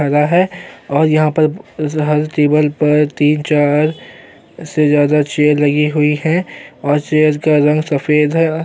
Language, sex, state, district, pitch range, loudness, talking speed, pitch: Hindi, male, Uttarakhand, Tehri Garhwal, 150-155 Hz, -14 LUFS, 165 wpm, 150 Hz